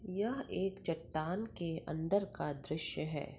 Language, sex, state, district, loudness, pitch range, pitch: Hindi, female, Bihar, Madhepura, -38 LUFS, 155-195 Hz, 170 Hz